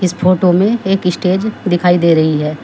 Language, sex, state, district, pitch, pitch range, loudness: Hindi, female, Uttar Pradesh, Shamli, 180 Hz, 170-190 Hz, -13 LUFS